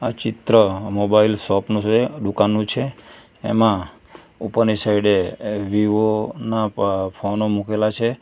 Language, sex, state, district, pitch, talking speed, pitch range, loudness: Gujarati, male, Gujarat, Valsad, 105 Hz, 100 wpm, 100-110 Hz, -19 LUFS